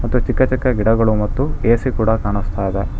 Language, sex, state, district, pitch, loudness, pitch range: Kannada, male, Karnataka, Bangalore, 110 Hz, -18 LUFS, 100-125 Hz